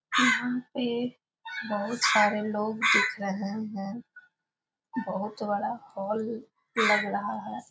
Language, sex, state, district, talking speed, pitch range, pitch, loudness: Maithili, female, Bihar, Muzaffarpur, 110 wpm, 205-245 Hz, 215 Hz, -28 LUFS